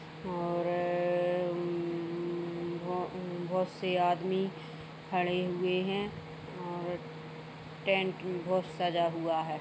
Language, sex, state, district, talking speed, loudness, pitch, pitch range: Hindi, female, Chhattisgarh, Kabirdham, 100 wpm, -33 LUFS, 175 Hz, 170-180 Hz